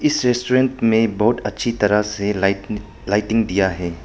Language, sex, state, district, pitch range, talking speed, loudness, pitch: Hindi, male, Arunachal Pradesh, Papum Pare, 100-115 Hz, 165 wpm, -19 LUFS, 105 Hz